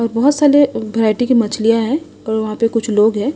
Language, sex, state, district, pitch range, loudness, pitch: Hindi, female, Odisha, Sambalpur, 220-265 Hz, -15 LUFS, 230 Hz